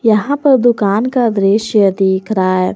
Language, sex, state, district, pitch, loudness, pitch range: Hindi, female, Jharkhand, Garhwa, 210 Hz, -13 LUFS, 195-240 Hz